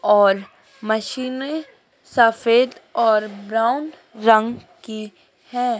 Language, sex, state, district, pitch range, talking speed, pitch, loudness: Hindi, female, Madhya Pradesh, Dhar, 215-250 Hz, 85 wpm, 230 Hz, -19 LUFS